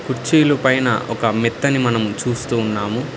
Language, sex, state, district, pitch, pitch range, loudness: Telugu, male, Telangana, Hyderabad, 120 Hz, 115-135 Hz, -18 LUFS